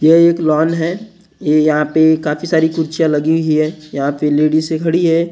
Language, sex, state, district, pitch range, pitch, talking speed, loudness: Hindi, male, Maharashtra, Gondia, 155-165 Hz, 160 Hz, 190 wpm, -14 LUFS